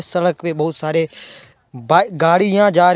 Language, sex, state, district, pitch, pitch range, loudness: Hindi, male, Jharkhand, Deoghar, 165 Hz, 155-180 Hz, -16 LUFS